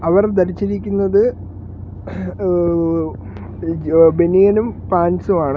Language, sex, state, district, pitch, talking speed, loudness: Malayalam, male, Kerala, Kollam, 170 Hz, 65 wpm, -16 LUFS